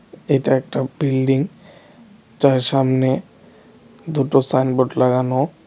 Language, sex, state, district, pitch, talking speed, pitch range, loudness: Bengali, male, Tripura, West Tripura, 135 Hz, 85 wpm, 130-165 Hz, -18 LUFS